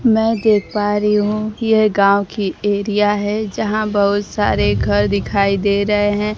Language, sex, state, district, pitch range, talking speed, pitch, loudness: Hindi, female, Bihar, Kaimur, 200-215 Hz, 180 wpm, 205 Hz, -16 LUFS